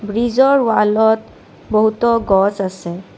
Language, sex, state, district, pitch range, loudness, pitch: Assamese, female, Assam, Kamrup Metropolitan, 195-230 Hz, -15 LUFS, 220 Hz